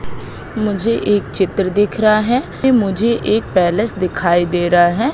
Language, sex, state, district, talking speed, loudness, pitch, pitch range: Hindi, female, Madhya Pradesh, Katni, 150 wpm, -15 LUFS, 205 Hz, 185-230 Hz